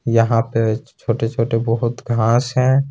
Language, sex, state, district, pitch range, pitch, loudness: Hindi, male, Jharkhand, Ranchi, 115-120 Hz, 115 Hz, -18 LUFS